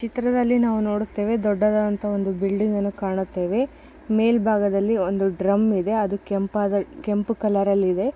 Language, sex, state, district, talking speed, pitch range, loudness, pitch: Kannada, female, Karnataka, Chamarajanagar, 140 wpm, 200-225 Hz, -22 LUFS, 210 Hz